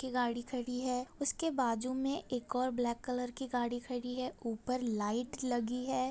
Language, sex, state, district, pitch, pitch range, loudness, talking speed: Hindi, female, Bihar, Begusarai, 250 Hz, 245-255 Hz, -36 LUFS, 185 wpm